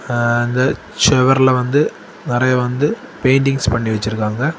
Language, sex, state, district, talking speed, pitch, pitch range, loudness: Tamil, male, Tamil Nadu, Kanyakumari, 115 wpm, 130 Hz, 120-135 Hz, -16 LUFS